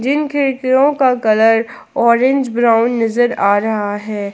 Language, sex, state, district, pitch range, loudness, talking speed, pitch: Hindi, female, Jharkhand, Palamu, 220-260 Hz, -14 LUFS, 140 wpm, 235 Hz